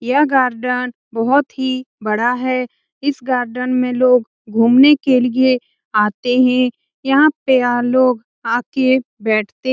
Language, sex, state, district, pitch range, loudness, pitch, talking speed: Hindi, female, Bihar, Lakhisarai, 245-260 Hz, -16 LUFS, 255 Hz, 130 wpm